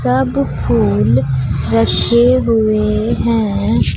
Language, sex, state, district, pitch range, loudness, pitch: Hindi, female, Bihar, Katihar, 105-125 Hz, -14 LUFS, 115 Hz